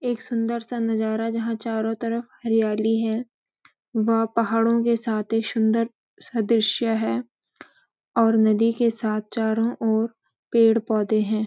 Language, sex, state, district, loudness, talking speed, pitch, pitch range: Hindi, female, Uttarakhand, Uttarkashi, -23 LUFS, 135 wpm, 225 Hz, 220-230 Hz